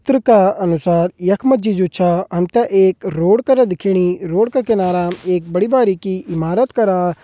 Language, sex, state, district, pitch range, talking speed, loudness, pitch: Hindi, male, Uttarakhand, Uttarkashi, 180-220 Hz, 180 wpm, -15 LUFS, 190 Hz